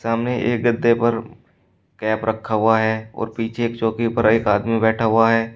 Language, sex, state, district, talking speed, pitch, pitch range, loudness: Hindi, male, Uttar Pradesh, Shamli, 195 wpm, 115 Hz, 110-115 Hz, -19 LUFS